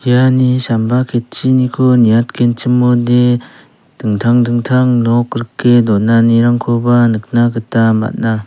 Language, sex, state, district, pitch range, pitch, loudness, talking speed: Garo, male, Meghalaya, South Garo Hills, 115-125 Hz, 120 Hz, -12 LUFS, 85 wpm